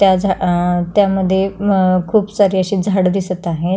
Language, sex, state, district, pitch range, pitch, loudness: Marathi, female, Maharashtra, Pune, 185-195 Hz, 190 Hz, -15 LUFS